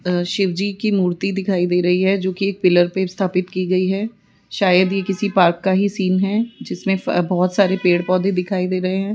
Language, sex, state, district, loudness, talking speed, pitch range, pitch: Hindi, female, Rajasthan, Jaipur, -18 LUFS, 215 wpm, 180-195 Hz, 190 Hz